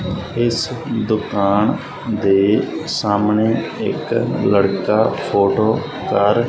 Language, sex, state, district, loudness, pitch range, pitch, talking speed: Punjabi, male, Punjab, Fazilka, -18 LUFS, 100-120 Hz, 110 Hz, 85 wpm